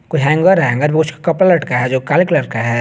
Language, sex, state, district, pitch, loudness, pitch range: Hindi, male, Jharkhand, Garhwa, 155 Hz, -14 LUFS, 130-170 Hz